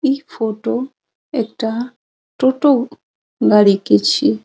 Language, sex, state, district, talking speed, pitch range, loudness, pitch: Maithili, female, Bihar, Saharsa, 95 wpm, 210-270 Hz, -16 LUFS, 240 Hz